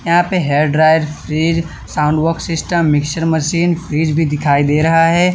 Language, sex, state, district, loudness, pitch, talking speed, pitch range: Hindi, male, Gujarat, Valsad, -15 LUFS, 160 Hz, 180 wpm, 150-170 Hz